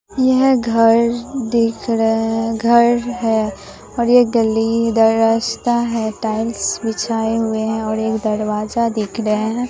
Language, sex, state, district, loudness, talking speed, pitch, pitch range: Hindi, male, Bihar, Katihar, -17 LUFS, 140 wpm, 225 Hz, 220-235 Hz